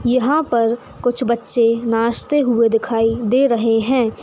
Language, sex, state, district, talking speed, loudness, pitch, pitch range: Hindi, female, Uttar Pradesh, Etah, 140 wpm, -17 LUFS, 235 Hz, 230-255 Hz